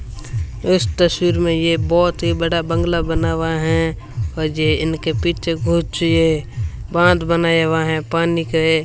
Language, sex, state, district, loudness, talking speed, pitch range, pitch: Hindi, female, Rajasthan, Bikaner, -18 LUFS, 155 wpm, 155-170 Hz, 165 Hz